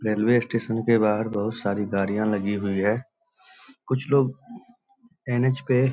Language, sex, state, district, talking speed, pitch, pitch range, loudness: Hindi, male, Bihar, Begusarai, 150 wpm, 120 Hz, 105-170 Hz, -24 LUFS